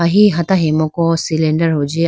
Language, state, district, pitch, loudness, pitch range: Idu Mishmi, Arunachal Pradesh, Lower Dibang Valley, 165 Hz, -15 LUFS, 155-170 Hz